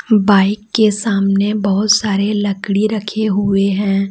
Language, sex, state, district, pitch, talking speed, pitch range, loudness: Hindi, female, Jharkhand, Deoghar, 205 Hz, 130 wpm, 195-210 Hz, -15 LUFS